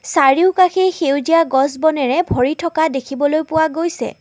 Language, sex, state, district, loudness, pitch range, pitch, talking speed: Assamese, female, Assam, Kamrup Metropolitan, -16 LUFS, 275-335 Hz, 315 Hz, 130 wpm